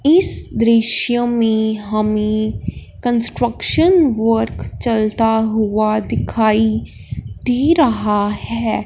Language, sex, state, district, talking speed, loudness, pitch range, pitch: Hindi, male, Punjab, Fazilka, 80 wpm, -16 LUFS, 215-240 Hz, 220 Hz